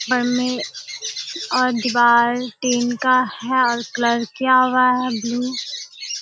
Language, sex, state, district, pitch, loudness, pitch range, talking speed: Hindi, female, Bihar, Kishanganj, 250 Hz, -19 LUFS, 240-255 Hz, 115 wpm